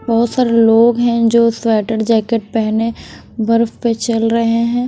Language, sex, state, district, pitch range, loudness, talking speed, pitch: Hindi, female, Bihar, West Champaran, 225-235 Hz, -14 LUFS, 160 wpm, 230 Hz